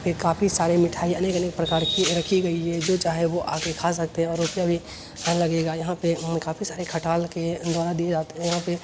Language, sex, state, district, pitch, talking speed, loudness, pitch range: Hindi, male, Bihar, Araria, 170 Hz, 245 wpm, -24 LUFS, 165-175 Hz